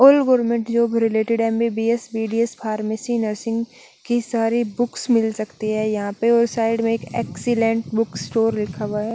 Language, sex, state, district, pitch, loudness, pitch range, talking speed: Hindi, female, Chandigarh, Chandigarh, 230 Hz, -21 LUFS, 220-235 Hz, 205 wpm